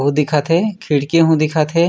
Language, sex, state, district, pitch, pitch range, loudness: Chhattisgarhi, male, Chhattisgarh, Raigarh, 155 Hz, 150-165 Hz, -15 LUFS